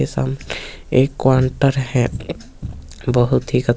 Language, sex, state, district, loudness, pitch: Hindi, male, Chhattisgarh, Kabirdham, -18 LUFS, 125 Hz